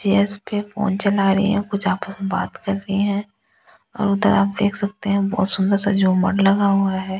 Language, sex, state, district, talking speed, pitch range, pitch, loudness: Hindi, female, Delhi, New Delhi, 215 wpm, 195-205 Hz, 200 Hz, -19 LUFS